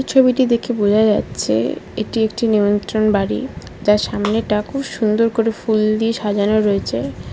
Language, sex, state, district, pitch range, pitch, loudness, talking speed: Bengali, male, West Bengal, Paschim Medinipur, 210-230 Hz, 215 Hz, -17 LUFS, 140 wpm